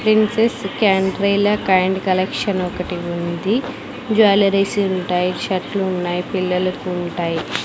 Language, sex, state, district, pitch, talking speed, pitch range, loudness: Telugu, female, Andhra Pradesh, Sri Satya Sai, 190 Hz, 80 wpm, 180-200 Hz, -18 LUFS